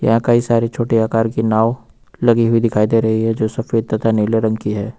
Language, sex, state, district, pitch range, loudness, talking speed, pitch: Hindi, male, Uttar Pradesh, Lucknow, 110-115 Hz, -16 LUFS, 240 wpm, 115 Hz